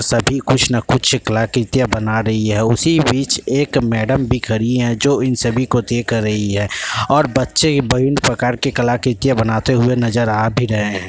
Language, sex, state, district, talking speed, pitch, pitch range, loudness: Hindi, male, Bihar, Kishanganj, 190 wpm, 120 Hz, 110-130 Hz, -16 LUFS